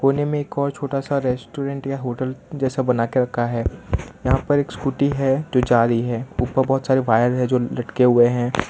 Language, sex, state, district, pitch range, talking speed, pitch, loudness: Hindi, male, Gujarat, Valsad, 120-140 Hz, 215 wpm, 130 Hz, -21 LUFS